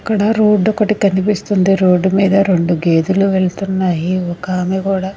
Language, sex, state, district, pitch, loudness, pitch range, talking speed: Telugu, female, Andhra Pradesh, Sri Satya Sai, 190 Hz, -14 LUFS, 185-200 Hz, 125 wpm